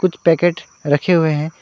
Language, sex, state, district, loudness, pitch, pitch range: Hindi, male, West Bengal, Alipurduar, -16 LUFS, 165 Hz, 155-175 Hz